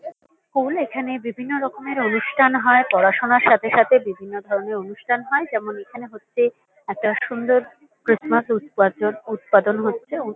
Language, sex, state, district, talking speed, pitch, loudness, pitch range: Bengali, female, West Bengal, Kolkata, 125 wpm, 235 Hz, -20 LUFS, 215-265 Hz